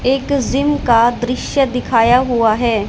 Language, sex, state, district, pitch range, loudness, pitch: Hindi, female, Haryana, Charkhi Dadri, 235-270 Hz, -15 LUFS, 250 Hz